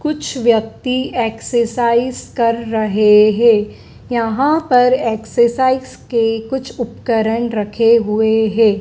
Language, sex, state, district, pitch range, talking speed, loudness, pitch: Hindi, female, Madhya Pradesh, Dhar, 220-250 Hz, 100 wpm, -15 LUFS, 235 Hz